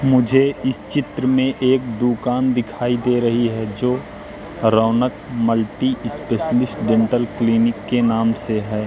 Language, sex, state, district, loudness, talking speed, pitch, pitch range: Hindi, male, Madhya Pradesh, Katni, -19 LUFS, 135 wpm, 120 Hz, 115-130 Hz